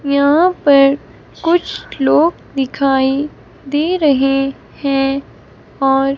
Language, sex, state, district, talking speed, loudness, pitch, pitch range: Hindi, female, Himachal Pradesh, Shimla, 85 wpm, -15 LUFS, 280 Hz, 270-295 Hz